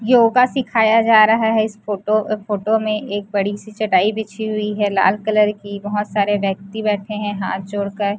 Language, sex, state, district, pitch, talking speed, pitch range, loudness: Hindi, female, Chhattisgarh, Raipur, 210 Hz, 200 wpm, 205-220 Hz, -18 LUFS